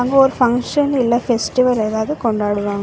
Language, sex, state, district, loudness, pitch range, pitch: Tamil, female, Karnataka, Bangalore, -17 LUFS, 220-260 Hz, 245 Hz